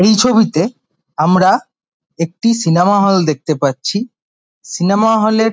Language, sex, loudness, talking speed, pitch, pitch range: Bengali, male, -14 LUFS, 130 wpm, 195 Hz, 165-220 Hz